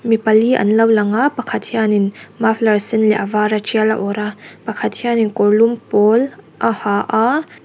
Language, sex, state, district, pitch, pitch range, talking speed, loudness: Mizo, female, Mizoram, Aizawl, 220 Hz, 210-230 Hz, 195 wpm, -16 LUFS